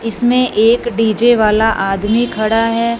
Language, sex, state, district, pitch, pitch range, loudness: Hindi, female, Punjab, Fazilka, 225 Hz, 215-240 Hz, -13 LUFS